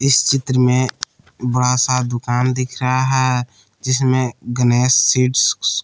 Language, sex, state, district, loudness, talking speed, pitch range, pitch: Hindi, male, Jharkhand, Palamu, -16 LUFS, 135 wpm, 125-130 Hz, 125 Hz